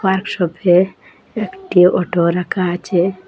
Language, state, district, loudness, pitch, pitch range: Bengali, Assam, Hailakandi, -16 LUFS, 180 Hz, 175-190 Hz